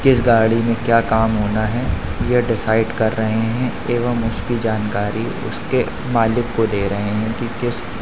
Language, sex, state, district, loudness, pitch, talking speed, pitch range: Hindi, male, Madhya Pradesh, Katni, -19 LUFS, 115 Hz, 180 wpm, 110-120 Hz